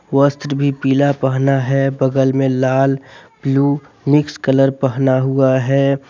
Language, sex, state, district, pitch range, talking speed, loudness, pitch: Hindi, male, Jharkhand, Deoghar, 135-140 Hz, 140 wpm, -16 LUFS, 135 Hz